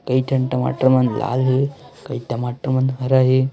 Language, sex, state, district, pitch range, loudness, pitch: Hindi, female, Chhattisgarh, Raipur, 125-130 Hz, -19 LUFS, 130 Hz